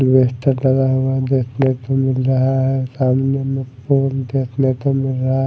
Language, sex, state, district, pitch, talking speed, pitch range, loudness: Hindi, male, Odisha, Malkangiri, 130 Hz, 165 wpm, 130-135 Hz, -17 LUFS